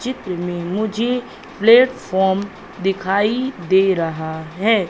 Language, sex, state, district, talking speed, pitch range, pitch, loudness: Hindi, female, Madhya Pradesh, Katni, 100 wpm, 180-225 Hz, 195 Hz, -18 LUFS